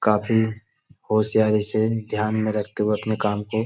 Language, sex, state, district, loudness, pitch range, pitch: Hindi, male, Uttar Pradesh, Budaun, -22 LUFS, 105-110 Hz, 110 Hz